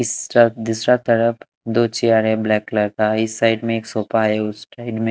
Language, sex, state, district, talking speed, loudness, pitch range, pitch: Hindi, male, Punjab, Kapurthala, 235 wpm, -18 LUFS, 110-115 Hz, 115 Hz